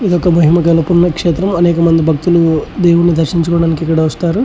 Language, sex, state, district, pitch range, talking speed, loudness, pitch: Telugu, male, Andhra Pradesh, Chittoor, 165-175 Hz, 160 wpm, -12 LUFS, 170 Hz